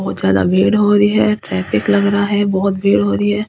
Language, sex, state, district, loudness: Hindi, female, Delhi, New Delhi, -14 LUFS